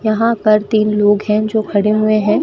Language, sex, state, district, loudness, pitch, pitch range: Hindi, female, Rajasthan, Bikaner, -14 LUFS, 215 Hz, 210-215 Hz